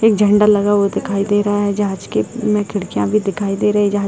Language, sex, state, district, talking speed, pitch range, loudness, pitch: Hindi, female, Bihar, Jahanabad, 280 wpm, 200-210 Hz, -16 LUFS, 205 Hz